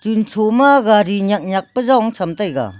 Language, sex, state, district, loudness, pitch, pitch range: Wancho, female, Arunachal Pradesh, Longding, -15 LUFS, 210 Hz, 195-230 Hz